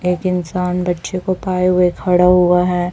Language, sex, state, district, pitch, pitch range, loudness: Hindi, female, Chhattisgarh, Raipur, 180 Hz, 180-185 Hz, -16 LUFS